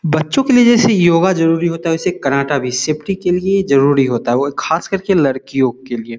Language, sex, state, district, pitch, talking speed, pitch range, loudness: Hindi, male, Bihar, Samastipur, 160 Hz, 225 wpm, 135-185 Hz, -14 LUFS